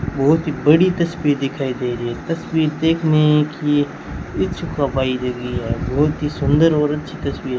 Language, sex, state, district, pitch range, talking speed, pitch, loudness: Hindi, male, Rajasthan, Bikaner, 135-155 Hz, 175 wpm, 150 Hz, -19 LUFS